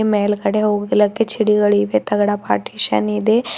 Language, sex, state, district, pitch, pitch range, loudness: Kannada, female, Karnataka, Bidar, 210 Hz, 205-220 Hz, -17 LUFS